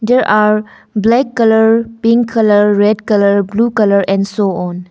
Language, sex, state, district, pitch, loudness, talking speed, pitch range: English, female, Arunachal Pradesh, Longding, 215 Hz, -12 LUFS, 160 wpm, 200-230 Hz